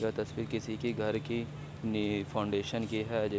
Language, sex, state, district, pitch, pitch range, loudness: Hindi, male, Bihar, Begusarai, 110 Hz, 105-115 Hz, -35 LUFS